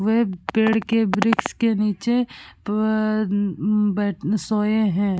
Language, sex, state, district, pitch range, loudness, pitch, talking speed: Hindi, female, Bihar, Vaishali, 205-220 Hz, -21 LUFS, 215 Hz, 125 wpm